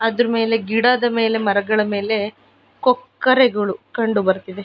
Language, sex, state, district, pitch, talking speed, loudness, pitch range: Kannada, male, Karnataka, Mysore, 225 Hz, 90 wpm, -18 LUFS, 205-240 Hz